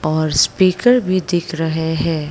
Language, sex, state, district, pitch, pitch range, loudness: Hindi, female, Arunachal Pradesh, Lower Dibang Valley, 165 Hz, 155-185 Hz, -16 LUFS